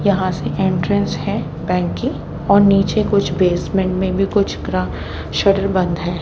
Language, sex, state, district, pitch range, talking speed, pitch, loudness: Hindi, female, Haryana, Jhajjar, 170-195 Hz, 165 wpm, 185 Hz, -18 LUFS